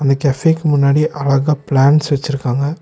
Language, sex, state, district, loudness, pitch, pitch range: Tamil, male, Tamil Nadu, Nilgiris, -15 LUFS, 145 Hz, 140-150 Hz